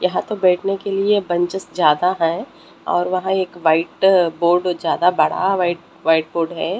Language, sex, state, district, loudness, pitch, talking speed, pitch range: Hindi, male, Delhi, New Delhi, -18 LUFS, 180 Hz, 165 wpm, 170-190 Hz